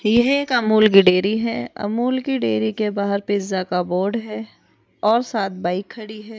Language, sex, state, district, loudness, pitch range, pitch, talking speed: Hindi, female, Rajasthan, Jaipur, -19 LUFS, 195-230 Hz, 215 Hz, 190 wpm